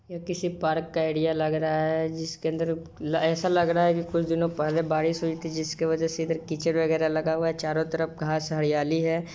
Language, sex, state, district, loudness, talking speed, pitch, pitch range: Hindi, male, Bihar, Sitamarhi, -26 LUFS, 150 wpm, 160 Hz, 160-165 Hz